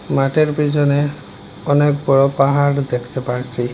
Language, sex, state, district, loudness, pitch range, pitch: Bengali, male, Assam, Hailakandi, -17 LUFS, 125-145 Hz, 140 Hz